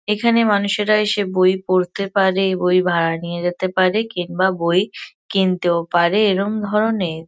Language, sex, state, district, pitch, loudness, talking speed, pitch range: Bengali, female, West Bengal, Kolkata, 190 Hz, -18 LUFS, 140 wpm, 180-210 Hz